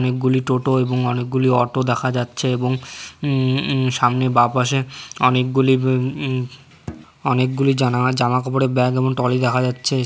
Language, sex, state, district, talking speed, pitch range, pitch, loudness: Bengali, male, West Bengal, Jhargram, 115 wpm, 125-130 Hz, 130 Hz, -19 LUFS